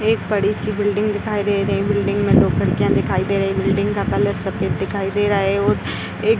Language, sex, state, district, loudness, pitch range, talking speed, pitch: Hindi, female, Uttar Pradesh, Etah, -19 LUFS, 195-210 Hz, 255 wpm, 205 Hz